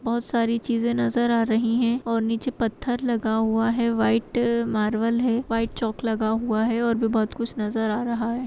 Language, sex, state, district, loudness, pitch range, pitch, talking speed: Kumaoni, female, Uttarakhand, Tehri Garhwal, -23 LUFS, 225-235 Hz, 230 Hz, 205 wpm